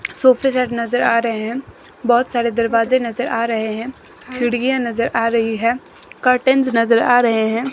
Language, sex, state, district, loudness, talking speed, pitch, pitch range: Hindi, female, Himachal Pradesh, Shimla, -17 LUFS, 180 wpm, 240 Hz, 230-255 Hz